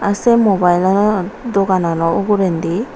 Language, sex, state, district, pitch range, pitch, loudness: Chakma, female, Tripura, Unakoti, 175-205 Hz, 195 Hz, -15 LUFS